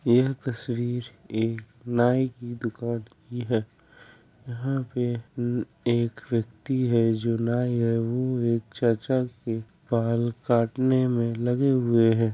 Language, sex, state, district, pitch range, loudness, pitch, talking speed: Hindi, male, Bihar, Kishanganj, 115-125 Hz, -26 LUFS, 120 Hz, 125 wpm